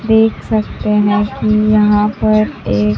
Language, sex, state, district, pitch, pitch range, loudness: Hindi, female, Bihar, Kaimur, 210 Hz, 210-215 Hz, -13 LUFS